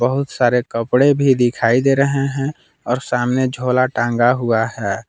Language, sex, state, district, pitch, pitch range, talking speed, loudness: Hindi, male, Jharkhand, Palamu, 125 Hz, 120-135 Hz, 165 wpm, -17 LUFS